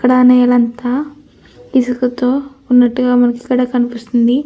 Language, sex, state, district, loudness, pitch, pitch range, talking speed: Telugu, female, Andhra Pradesh, Anantapur, -13 LUFS, 250 Hz, 245-255 Hz, 95 wpm